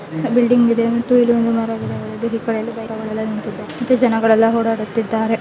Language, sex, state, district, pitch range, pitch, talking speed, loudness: Kannada, female, Karnataka, Bellary, 220-235 Hz, 225 Hz, 145 wpm, -17 LUFS